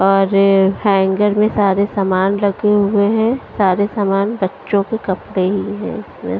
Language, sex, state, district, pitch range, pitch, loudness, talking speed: Hindi, female, Punjab, Pathankot, 195-210 Hz, 200 Hz, -16 LUFS, 140 wpm